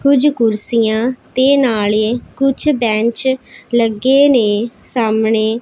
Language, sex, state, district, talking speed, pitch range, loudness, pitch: Punjabi, female, Punjab, Pathankot, 95 wpm, 220-265 Hz, -14 LUFS, 235 Hz